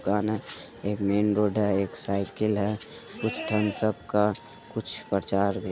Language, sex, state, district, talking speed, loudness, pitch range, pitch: Hindi, male, Bihar, Supaul, 145 wpm, -28 LUFS, 100-105 Hz, 105 Hz